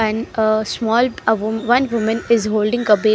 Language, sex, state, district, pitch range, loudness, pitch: English, female, Haryana, Rohtak, 215-235 Hz, -18 LUFS, 220 Hz